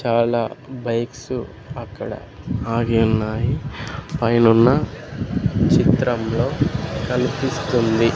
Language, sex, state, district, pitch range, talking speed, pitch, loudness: Telugu, male, Andhra Pradesh, Sri Satya Sai, 115-130 Hz, 60 wpm, 120 Hz, -20 LUFS